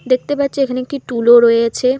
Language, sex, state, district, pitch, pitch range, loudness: Bengali, female, West Bengal, Alipurduar, 255 Hz, 235-275 Hz, -14 LUFS